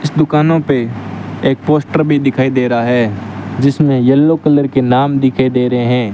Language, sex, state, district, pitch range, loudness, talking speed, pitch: Hindi, male, Rajasthan, Bikaner, 120-150 Hz, -13 LUFS, 185 wpm, 130 Hz